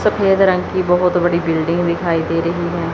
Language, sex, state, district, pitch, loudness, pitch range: Hindi, female, Chandigarh, Chandigarh, 175 Hz, -16 LUFS, 170-180 Hz